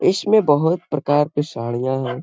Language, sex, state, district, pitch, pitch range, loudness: Hindi, male, Bihar, Gaya, 145 Hz, 130-165 Hz, -19 LUFS